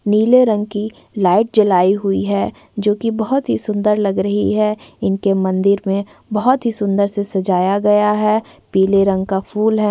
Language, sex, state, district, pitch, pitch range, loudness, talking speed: Hindi, female, Chhattisgarh, Korba, 205 Hz, 195-215 Hz, -16 LUFS, 180 wpm